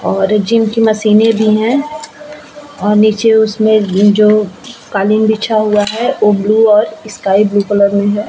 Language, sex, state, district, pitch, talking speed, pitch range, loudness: Hindi, female, Bihar, Vaishali, 215 Hz, 150 wpm, 205-225 Hz, -11 LUFS